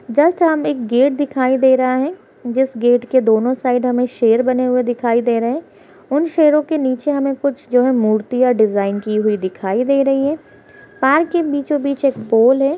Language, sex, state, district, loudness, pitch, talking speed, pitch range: Hindi, female, Bihar, Saharsa, -16 LUFS, 255 Hz, 205 wpm, 240-285 Hz